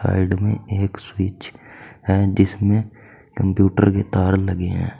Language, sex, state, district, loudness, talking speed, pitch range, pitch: Hindi, male, Uttar Pradesh, Saharanpur, -20 LUFS, 130 wpm, 95-105 Hz, 100 Hz